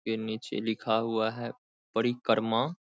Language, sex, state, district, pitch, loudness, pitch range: Hindi, male, Bihar, Saharsa, 110 Hz, -30 LUFS, 110-120 Hz